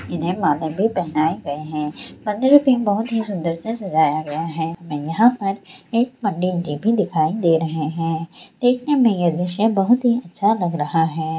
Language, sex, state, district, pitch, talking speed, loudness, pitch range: Hindi, female, Bihar, Sitamarhi, 180 Hz, 185 wpm, -20 LUFS, 160-225 Hz